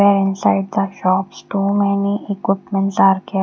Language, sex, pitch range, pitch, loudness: English, female, 195-200 Hz, 195 Hz, -17 LUFS